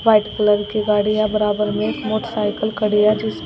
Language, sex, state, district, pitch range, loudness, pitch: Hindi, female, Uttar Pradesh, Shamli, 210-215 Hz, -18 LUFS, 215 Hz